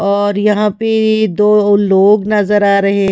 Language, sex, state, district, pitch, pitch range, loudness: Hindi, female, Chhattisgarh, Raipur, 205 Hz, 200-210 Hz, -11 LUFS